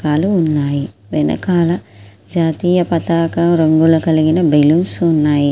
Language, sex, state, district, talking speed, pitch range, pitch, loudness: Telugu, female, Andhra Pradesh, Srikakulam, 100 wpm, 145-170 Hz, 160 Hz, -14 LUFS